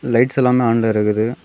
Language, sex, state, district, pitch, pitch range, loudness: Tamil, male, Tamil Nadu, Kanyakumari, 115 Hz, 110-125 Hz, -16 LUFS